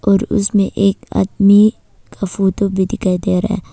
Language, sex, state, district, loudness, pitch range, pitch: Hindi, female, Arunachal Pradesh, Papum Pare, -15 LUFS, 190-205 Hz, 200 Hz